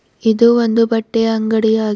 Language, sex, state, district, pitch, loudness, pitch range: Kannada, female, Karnataka, Bidar, 225 Hz, -14 LUFS, 220-230 Hz